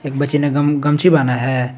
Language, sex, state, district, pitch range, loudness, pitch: Hindi, male, Jharkhand, Garhwa, 130-145 Hz, -16 LUFS, 145 Hz